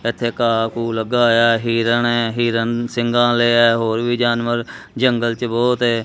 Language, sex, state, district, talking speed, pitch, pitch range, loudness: Punjabi, male, Punjab, Kapurthala, 190 wpm, 120 Hz, 115-120 Hz, -17 LUFS